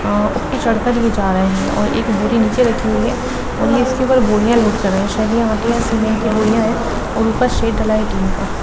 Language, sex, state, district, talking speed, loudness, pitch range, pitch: Hindi, female, Chhattisgarh, Raigarh, 230 wpm, -16 LUFS, 215-235 Hz, 225 Hz